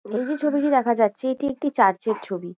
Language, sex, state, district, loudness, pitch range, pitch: Bengali, female, West Bengal, Kolkata, -22 LUFS, 215-280 Hz, 245 Hz